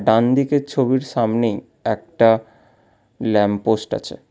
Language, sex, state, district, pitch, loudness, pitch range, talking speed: Bengali, male, West Bengal, Alipurduar, 115 Hz, -19 LUFS, 110-130 Hz, 85 wpm